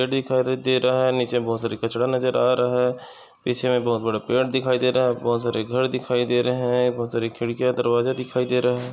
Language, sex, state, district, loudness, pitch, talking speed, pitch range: Hindi, male, Maharashtra, Chandrapur, -22 LUFS, 125 Hz, 230 wpm, 120-125 Hz